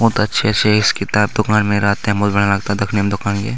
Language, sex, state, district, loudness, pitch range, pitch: Hindi, male, Bihar, Lakhisarai, -16 LUFS, 100-105 Hz, 105 Hz